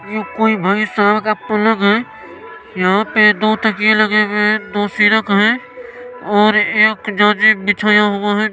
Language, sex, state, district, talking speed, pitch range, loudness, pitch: Maithili, male, Bihar, Supaul, 160 wpm, 205-215 Hz, -13 LUFS, 215 Hz